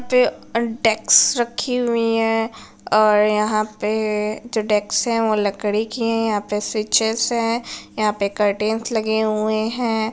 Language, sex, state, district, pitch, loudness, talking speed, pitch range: Hindi, female, Bihar, Saran, 220 Hz, -19 LUFS, 160 wpm, 215-230 Hz